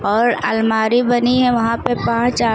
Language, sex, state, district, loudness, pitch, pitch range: Hindi, female, Uttar Pradesh, Lucknow, -16 LUFS, 235 Hz, 225-245 Hz